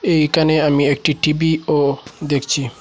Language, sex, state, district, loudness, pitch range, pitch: Bengali, male, Assam, Hailakandi, -17 LUFS, 140-155 Hz, 150 Hz